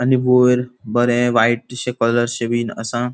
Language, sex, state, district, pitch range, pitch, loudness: Konkani, male, Goa, North and South Goa, 120-125 Hz, 120 Hz, -17 LUFS